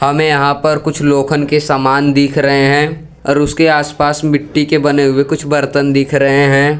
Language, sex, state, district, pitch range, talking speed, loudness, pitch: Hindi, male, Gujarat, Valsad, 140-150 Hz, 195 wpm, -12 LUFS, 145 Hz